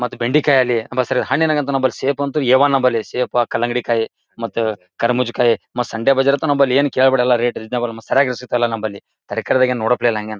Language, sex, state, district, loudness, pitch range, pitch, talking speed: Kannada, male, Karnataka, Gulbarga, -17 LUFS, 115-135 Hz, 125 Hz, 165 wpm